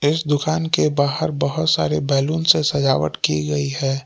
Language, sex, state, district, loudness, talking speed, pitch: Hindi, male, Jharkhand, Palamu, -19 LUFS, 175 wpm, 135 Hz